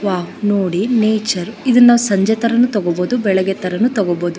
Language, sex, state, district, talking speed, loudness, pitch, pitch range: Kannada, female, Karnataka, Shimoga, 135 wpm, -15 LUFS, 205 Hz, 185-230 Hz